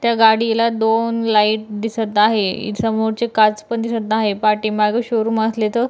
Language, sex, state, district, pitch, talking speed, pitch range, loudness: Marathi, female, Maharashtra, Dhule, 220 Hz, 155 wpm, 215-230 Hz, -17 LUFS